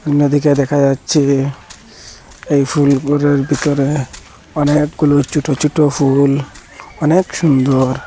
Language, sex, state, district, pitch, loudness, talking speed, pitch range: Bengali, male, Assam, Hailakandi, 145 Hz, -14 LUFS, 90 wpm, 135-150 Hz